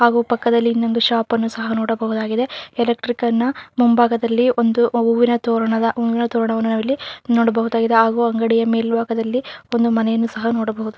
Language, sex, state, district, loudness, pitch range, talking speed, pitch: Kannada, female, Karnataka, Raichur, -18 LUFS, 225-235 Hz, 130 wpm, 230 Hz